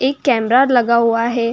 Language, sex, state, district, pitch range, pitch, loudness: Hindi, female, Uttar Pradesh, Jyotiba Phule Nagar, 230-260 Hz, 240 Hz, -14 LUFS